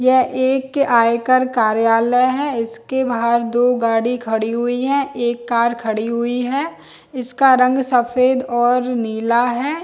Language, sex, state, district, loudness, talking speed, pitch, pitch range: Hindi, female, Jharkhand, Jamtara, -17 LUFS, 140 wpm, 245 Hz, 235-260 Hz